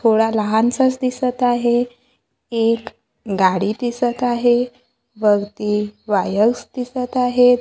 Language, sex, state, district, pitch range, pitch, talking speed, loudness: Marathi, female, Maharashtra, Gondia, 215-245 Hz, 240 Hz, 95 wpm, -18 LUFS